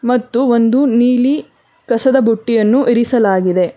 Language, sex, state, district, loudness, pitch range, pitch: Kannada, female, Karnataka, Bangalore, -13 LUFS, 230-255 Hz, 240 Hz